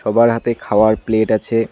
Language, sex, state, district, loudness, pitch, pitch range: Bengali, male, West Bengal, Cooch Behar, -16 LUFS, 110 Hz, 110-115 Hz